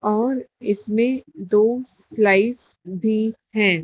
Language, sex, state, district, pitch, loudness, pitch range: Hindi, female, Madhya Pradesh, Dhar, 220 Hz, -19 LUFS, 205-235 Hz